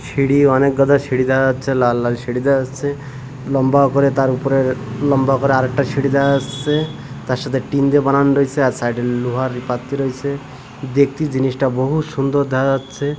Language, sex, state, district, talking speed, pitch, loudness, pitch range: Bengali, male, Odisha, Malkangiri, 175 wpm, 135 Hz, -17 LUFS, 130-140 Hz